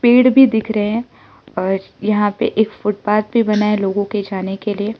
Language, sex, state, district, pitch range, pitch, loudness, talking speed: Hindi, male, Arunachal Pradesh, Lower Dibang Valley, 205-220 Hz, 210 Hz, -17 LUFS, 215 wpm